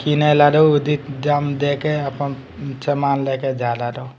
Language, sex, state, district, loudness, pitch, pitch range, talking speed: Bhojpuri, male, Bihar, Muzaffarpur, -18 LUFS, 140 Hz, 135-145 Hz, 160 wpm